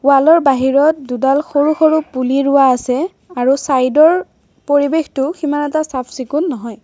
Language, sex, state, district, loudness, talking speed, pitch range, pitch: Assamese, female, Assam, Kamrup Metropolitan, -14 LUFS, 150 wpm, 260-310 Hz, 280 Hz